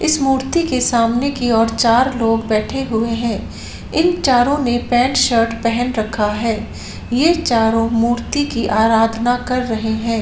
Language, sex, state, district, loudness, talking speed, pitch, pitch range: Hindi, female, Bihar, Saran, -16 LUFS, 160 wpm, 235 Hz, 225-265 Hz